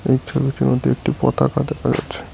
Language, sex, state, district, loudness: Bengali, male, West Bengal, Cooch Behar, -19 LUFS